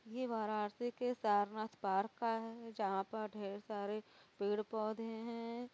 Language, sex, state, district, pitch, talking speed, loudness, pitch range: Hindi, female, Uttar Pradesh, Varanasi, 220 Hz, 145 wpm, -41 LUFS, 205-230 Hz